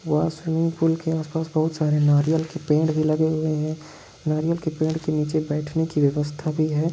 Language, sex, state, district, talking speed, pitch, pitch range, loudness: Hindi, male, Goa, North and South Goa, 215 wpm, 155 Hz, 150-160 Hz, -23 LUFS